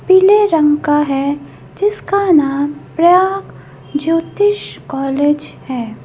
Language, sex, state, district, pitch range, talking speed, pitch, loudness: Hindi, female, Madhya Pradesh, Bhopal, 285-380 Hz, 90 wpm, 300 Hz, -14 LUFS